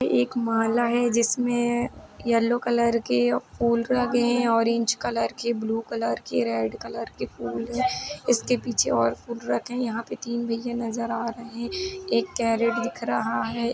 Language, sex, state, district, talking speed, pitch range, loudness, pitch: Hindi, female, Uttar Pradesh, Jalaun, 175 wpm, 230-245 Hz, -25 LUFS, 235 Hz